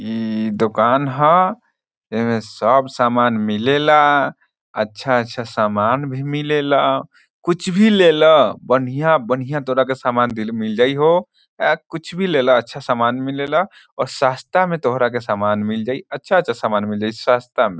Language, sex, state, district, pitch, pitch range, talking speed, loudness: Bhojpuri, male, Bihar, Saran, 130 Hz, 115-150 Hz, 150 wpm, -17 LUFS